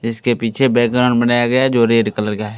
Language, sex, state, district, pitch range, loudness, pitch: Hindi, male, Bihar, West Champaran, 115-125 Hz, -15 LUFS, 120 Hz